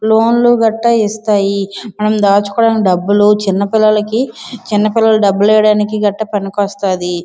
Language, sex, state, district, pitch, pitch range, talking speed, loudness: Telugu, female, Andhra Pradesh, Srikakulam, 210 Hz, 200-220 Hz, 125 wpm, -12 LUFS